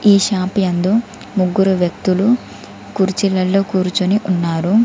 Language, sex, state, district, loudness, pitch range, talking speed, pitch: Telugu, female, Telangana, Komaram Bheem, -16 LUFS, 185-200 Hz, 100 wpm, 190 Hz